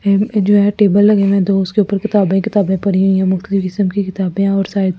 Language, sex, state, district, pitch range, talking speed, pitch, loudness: Hindi, female, Delhi, New Delhi, 190-205 Hz, 290 wpm, 195 Hz, -14 LUFS